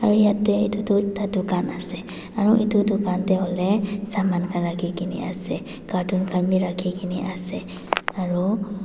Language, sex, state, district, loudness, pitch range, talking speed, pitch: Nagamese, female, Nagaland, Dimapur, -23 LUFS, 180-205 Hz, 155 wpm, 190 Hz